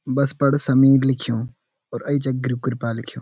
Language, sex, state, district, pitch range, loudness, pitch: Garhwali, male, Uttarakhand, Uttarkashi, 120-135 Hz, -20 LUFS, 130 Hz